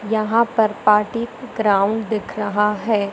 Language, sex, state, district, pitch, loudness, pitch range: Hindi, female, Madhya Pradesh, Katni, 215 Hz, -19 LUFS, 210-225 Hz